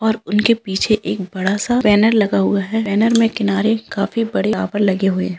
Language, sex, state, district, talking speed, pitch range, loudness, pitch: Hindi, female, Bihar, Gaya, 210 wpm, 195-220 Hz, -17 LUFS, 205 Hz